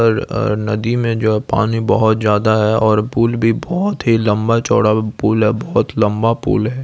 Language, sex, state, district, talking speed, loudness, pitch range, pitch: Hindi, male, Bihar, Supaul, 185 wpm, -15 LUFS, 110-115 Hz, 110 Hz